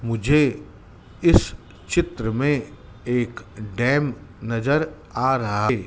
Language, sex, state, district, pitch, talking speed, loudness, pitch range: Hindi, male, Madhya Pradesh, Dhar, 115 Hz, 100 wpm, -22 LUFS, 105-130 Hz